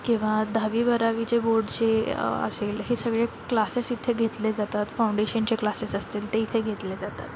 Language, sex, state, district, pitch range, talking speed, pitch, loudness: Marathi, female, Maharashtra, Chandrapur, 210-230 Hz, 165 wpm, 225 Hz, -26 LUFS